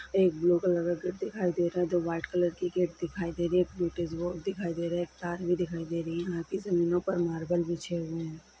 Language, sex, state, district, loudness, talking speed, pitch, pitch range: Hindi, female, Bihar, Sitamarhi, -31 LUFS, 270 wpm, 175 Hz, 170-180 Hz